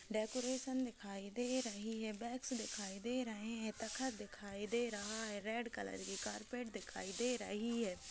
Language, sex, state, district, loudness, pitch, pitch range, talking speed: Hindi, female, Chhattisgarh, Kabirdham, -43 LUFS, 225 Hz, 205-245 Hz, 170 wpm